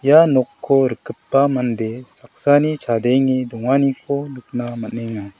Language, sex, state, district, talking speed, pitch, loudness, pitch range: Garo, male, Meghalaya, South Garo Hills, 100 wpm, 130 Hz, -18 LUFS, 120-140 Hz